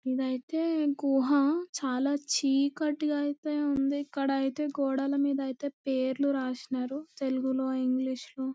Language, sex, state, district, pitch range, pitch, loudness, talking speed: Telugu, female, Andhra Pradesh, Anantapur, 265-285 Hz, 275 Hz, -30 LUFS, 110 wpm